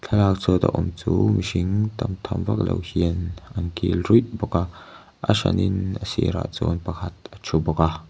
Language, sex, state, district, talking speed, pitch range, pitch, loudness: Mizo, male, Mizoram, Aizawl, 185 wpm, 85-105 Hz, 95 Hz, -23 LUFS